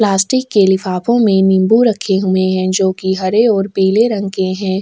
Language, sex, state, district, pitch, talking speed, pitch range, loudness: Hindi, female, Chhattisgarh, Sukma, 195 Hz, 185 wpm, 190-210 Hz, -13 LUFS